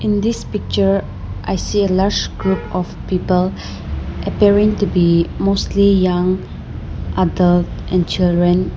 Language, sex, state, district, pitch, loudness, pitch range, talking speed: English, female, Nagaland, Dimapur, 185 Hz, -17 LUFS, 170-195 Hz, 125 wpm